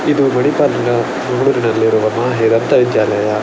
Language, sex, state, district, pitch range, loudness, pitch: Kannada, male, Karnataka, Dakshina Kannada, 110-130 Hz, -14 LUFS, 120 Hz